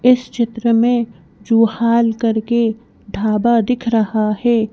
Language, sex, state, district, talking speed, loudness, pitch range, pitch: Hindi, female, Madhya Pradesh, Bhopal, 115 wpm, -16 LUFS, 220-235 Hz, 230 Hz